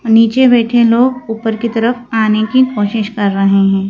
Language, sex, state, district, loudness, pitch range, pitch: Hindi, female, Madhya Pradesh, Bhopal, -12 LUFS, 210-240 Hz, 225 Hz